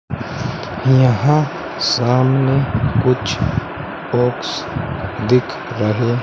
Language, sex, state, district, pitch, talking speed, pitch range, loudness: Hindi, male, Rajasthan, Bikaner, 125 Hz, 65 wpm, 120-135 Hz, -17 LUFS